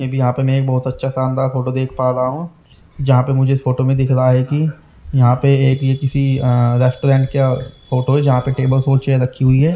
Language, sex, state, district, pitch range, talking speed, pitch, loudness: Hindi, male, Haryana, Rohtak, 130-135 Hz, 240 wpm, 130 Hz, -16 LUFS